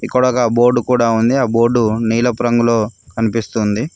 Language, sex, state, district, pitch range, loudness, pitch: Telugu, male, Telangana, Mahabubabad, 115-120 Hz, -15 LUFS, 115 Hz